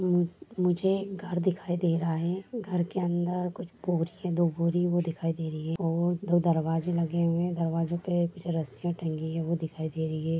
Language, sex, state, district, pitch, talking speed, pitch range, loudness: Hindi, female, Jharkhand, Jamtara, 175 Hz, 205 wpm, 165-175 Hz, -29 LUFS